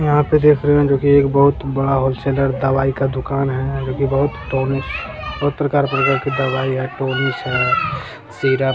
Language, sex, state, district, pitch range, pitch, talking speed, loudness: Hindi, male, Bihar, Jamui, 135-140 Hz, 135 Hz, 200 wpm, -17 LUFS